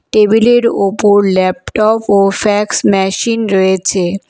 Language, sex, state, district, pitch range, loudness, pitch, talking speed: Bengali, female, West Bengal, Alipurduar, 190-215 Hz, -11 LUFS, 200 Hz, 110 wpm